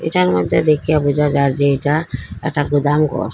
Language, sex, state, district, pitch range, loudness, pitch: Bengali, female, Assam, Hailakandi, 130-150 Hz, -16 LUFS, 145 Hz